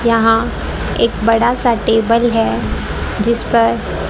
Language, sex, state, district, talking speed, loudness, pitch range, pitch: Hindi, female, Haryana, Rohtak, 115 wpm, -15 LUFS, 225-235 Hz, 230 Hz